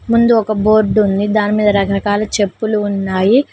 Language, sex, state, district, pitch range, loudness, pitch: Telugu, female, Telangana, Mahabubabad, 200-215 Hz, -14 LUFS, 210 Hz